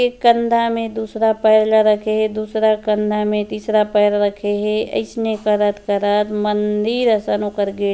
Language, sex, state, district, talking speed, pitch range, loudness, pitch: Chhattisgarhi, female, Chhattisgarh, Rajnandgaon, 160 wpm, 210-220 Hz, -17 LUFS, 215 Hz